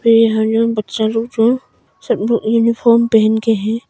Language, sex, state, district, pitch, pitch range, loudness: Hindi, female, Arunachal Pradesh, Longding, 225 Hz, 220-230 Hz, -15 LUFS